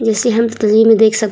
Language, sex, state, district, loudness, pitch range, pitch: Hindi, female, Uttar Pradesh, Muzaffarnagar, -12 LUFS, 215-225 Hz, 225 Hz